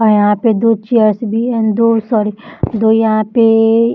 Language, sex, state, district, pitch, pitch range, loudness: Hindi, female, Bihar, Jahanabad, 225 Hz, 215-230 Hz, -13 LUFS